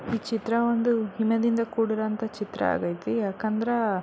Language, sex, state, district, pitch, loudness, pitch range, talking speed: Kannada, female, Karnataka, Belgaum, 220 Hz, -26 LUFS, 210-230 Hz, 150 wpm